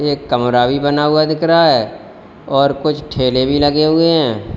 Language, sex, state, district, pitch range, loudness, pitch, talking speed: Hindi, male, Uttar Pradesh, Lalitpur, 130-155 Hz, -14 LUFS, 145 Hz, 195 wpm